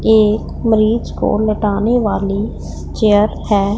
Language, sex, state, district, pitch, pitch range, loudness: Hindi, female, Punjab, Pathankot, 215 Hz, 205-220 Hz, -15 LUFS